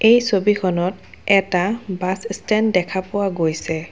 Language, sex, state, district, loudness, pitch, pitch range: Assamese, female, Assam, Kamrup Metropolitan, -19 LUFS, 195 Hz, 180-210 Hz